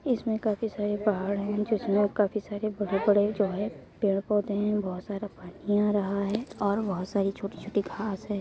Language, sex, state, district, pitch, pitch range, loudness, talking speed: Hindi, female, Uttar Pradesh, Etah, 205 Hz, 200-210 Hz, -28 LUFS, 185 wpm